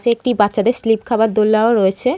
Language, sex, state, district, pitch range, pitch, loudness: Bengali, female, West Bengal, North 24 Parganas, 215-240 Hz, 225 Hz, -15 LUFS